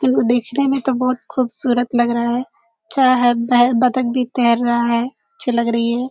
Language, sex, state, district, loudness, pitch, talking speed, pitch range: Hindi, female, Bihar, Kishanganj, -17 LUFS, 245 Hz, 205 wpm, 235-255 Hz